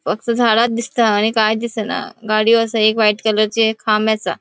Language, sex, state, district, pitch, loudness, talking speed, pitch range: Konkani, female, Goa, North and South Goa, 220 Hz, -16 LUFS, 190 wpm, 215-230 Hz